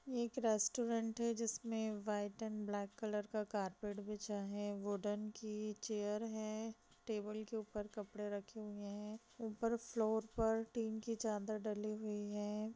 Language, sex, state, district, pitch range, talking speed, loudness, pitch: Hindi, female, Bihar, East Champaran, 210-225 Hz, 145 wpm, -43 LUFS, 215 Hz